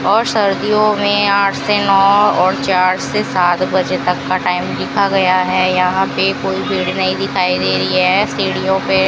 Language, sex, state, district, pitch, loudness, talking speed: Hindi, female, Rajasthan, Bikaner, 185 Hz, -14 LUFS, 190 wpm